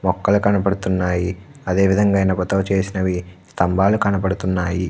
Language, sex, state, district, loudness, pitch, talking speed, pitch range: Telugu, male, Andhra Pradesh, Krishna, -19 LUFS, 95 Hz, 110 wpm, 90-100 Hz